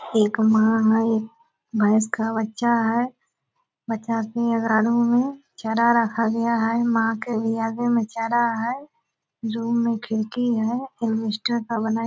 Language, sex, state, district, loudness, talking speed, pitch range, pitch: Hindi, female, Bihar, Purnia, -22 LUFS, 140 wpm, 225-235 Hz, 230 Hz